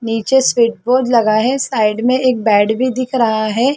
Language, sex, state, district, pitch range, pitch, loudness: Hindi, female, Chhattisgarh, Balrampur, 220-255 Hz, 235 Hz, -14 LUFS